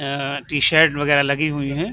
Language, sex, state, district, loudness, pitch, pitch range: Hindi, male, Uttar Pradesh, Budaun, -18 LUFS, 145 Hz, 140-155 Hz